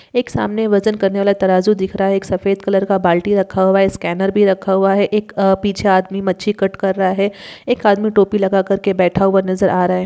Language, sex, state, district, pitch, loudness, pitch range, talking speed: Hindi, female, Uttar Pradesh, Hamirpur, 195 Hz, -15 LUFS, 190-200 Hz, 245 wpm